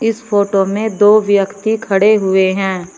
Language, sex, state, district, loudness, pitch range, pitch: Hindi, female, Uttar Pradesh, Shamli, -13 LUFS, 195-215 Hz, 205 Hz